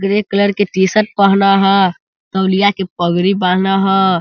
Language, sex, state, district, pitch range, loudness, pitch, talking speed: Hindi, male, Bihar, Sitamarhi, 190-200 Hz, -13 LUFS, 195 Hz, 155 wpm